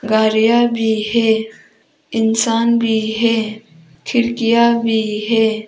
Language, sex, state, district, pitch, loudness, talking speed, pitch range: Hindi, female, Arunachal Pradesh, Papum Pare, 225 Hz, -16 LUFS, 95 wpm, 220-230 Hz